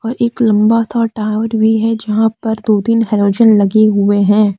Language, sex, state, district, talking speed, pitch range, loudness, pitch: Hindi, female, Jharkhand, Deoghar, 195 wpm, 210-225 Hz, -13 LUFS, 220 Hz